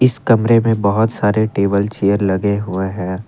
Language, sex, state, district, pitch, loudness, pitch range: Hindi, male, Assam, Kamrup Metropolitan, 105 Hz, -16 LUFS, 100-110 Hz